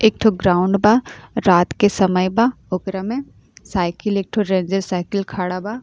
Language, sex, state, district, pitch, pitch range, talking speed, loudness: Bhojpuri, female, Uttar Pradesh, Ghazipur, 195 Hz, 185-220 Hz, 185 wpm, -19 LUFS